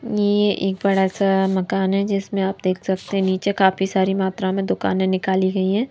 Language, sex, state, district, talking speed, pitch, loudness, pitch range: Hindi, female, Madhya Pradesh, Bhopal, 195 wpm, 190 Hz, -20 LUFS, 190-200 Hz